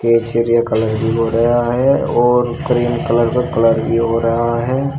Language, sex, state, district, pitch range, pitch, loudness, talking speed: Hindi, male, Uttar Pradesh, Shamli, 115-120 Hz, 120 Hz, -15 LUFS, 190 wpm